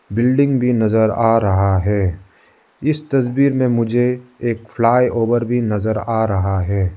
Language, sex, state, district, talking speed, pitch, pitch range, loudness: Hindi, male, Arunachal Pradesh, Lower Dibang Valley, 155 wpm, 115 Hz, 105-125 Hz, -17 LUFS